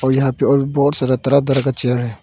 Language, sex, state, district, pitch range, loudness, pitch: Hindi, male, Arunachal Pradesh, Longding, 130-140 Hz, -16 LUFS, 135 Hz